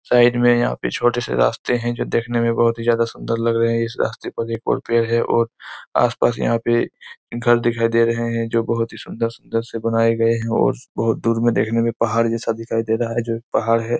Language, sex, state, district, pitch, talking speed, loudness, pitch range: Hindi, male, Chhattisgarh, Korba, 115 Hz, 245 wpm, -20 LUFS, 115-120 Hz